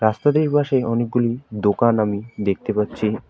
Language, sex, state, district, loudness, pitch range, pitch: Bengali, male, West Bengal, Alipurduar, -20 LUFS, 105-125 Hz, 115 Hz